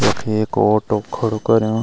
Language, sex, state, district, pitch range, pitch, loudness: Garhwali, male, Uttarakhand, Uttarkashi, 105-115 Hz, 110 Hz, -18 LUFS